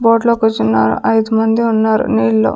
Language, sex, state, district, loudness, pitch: Telugu, female, Andhra Pradesh, Sri Satya Sai, -13 LUFS, 220 Hz